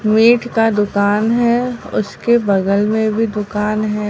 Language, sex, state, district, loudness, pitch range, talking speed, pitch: Hindi, female, Bihar, Katihar, -15 LUFS, 210-230 Hz, 145 wpm, 215 Hz